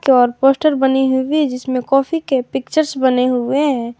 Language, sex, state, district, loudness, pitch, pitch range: Hindi, female, Jharkhand, Ranchi, -16 LUFS, 265 Hz, 255-280 Hz